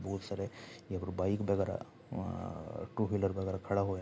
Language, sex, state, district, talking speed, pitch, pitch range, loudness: Hindi, male, Bihar, Saharsa, 195 wpm, 100 Hz, 95-105 Hz, -37 LUFS